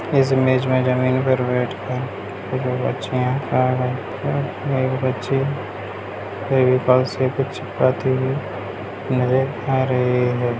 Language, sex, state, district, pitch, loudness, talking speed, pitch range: Hindi, male, Bihar, Gaya, 130 Hz, -21 LUFS, 135 wpm, 125-130 Hz